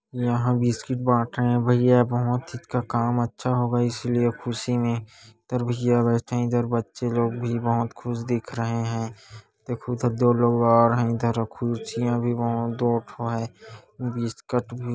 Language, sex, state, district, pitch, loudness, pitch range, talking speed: Hindi, female, Chhattisgarh, Kabirdham, 120 Hz, -24 LUFS, 115-120 Hz, 160 wpm